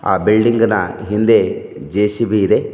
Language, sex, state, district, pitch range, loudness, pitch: Kannada, male, Karnataka, Bidar, 105-115 Hz, -15 LUFS, 105 Hz